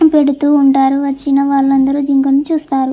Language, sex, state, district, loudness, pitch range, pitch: Telugu, female, Andhra Pradesh, Chittoor, -12 LUFS, 270-285 Hz, 275 Hz